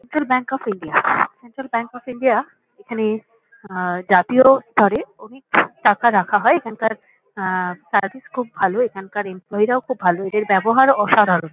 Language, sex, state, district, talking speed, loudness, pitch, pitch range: Bengali, female, West Bengal, Kolkata, 155 wpm, -18 LUFS, 220 Hz, 195-255 Hz